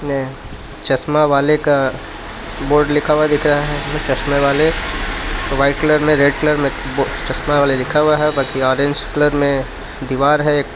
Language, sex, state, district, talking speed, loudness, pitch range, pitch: Hindi, male, Jharkhand, Palamu, 160 wpm, -16 LUFS, 135-150 Hz, 145 Hz